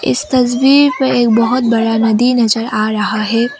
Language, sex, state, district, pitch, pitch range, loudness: Hindi, female, Assam, Kamrup Metropolitan, 235 Hz, 225-255 Hz, -12 LUFS